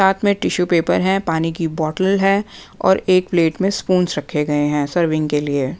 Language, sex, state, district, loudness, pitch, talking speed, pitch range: Hindi, female, Punjab, Pathankot, -18 LUFS, 175 Hz, 205 wpm, 155-190 Hz